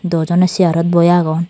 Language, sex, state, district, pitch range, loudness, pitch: Chakma, female, Tripura, Dhalai, 165-180 Hz, -13 LUFS, 170 Hz